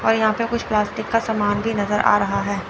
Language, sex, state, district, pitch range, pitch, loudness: Hindi, female, Chandigarh, Chandigarh, 205-225 Hz, 210 Hz, -20 LUFS